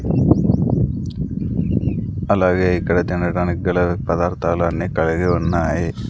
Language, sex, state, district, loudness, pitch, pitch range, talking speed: Telugu, male, Andhra Pradesh, Sri Satya Sai, -19 LUFS, 90 Hz, 85-90 Hz, 80 wpm